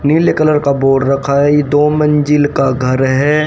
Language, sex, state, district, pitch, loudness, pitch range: Hindi, male, Haryana, Rohtak, 145 Hz, -12 LUFS, 135-150 Hz